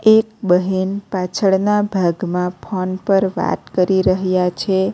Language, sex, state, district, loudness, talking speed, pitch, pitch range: Gujarati, female, Gujarat, Navsari, -18 LUFS, 120 wpm, 190 Hz, 185-195 Hz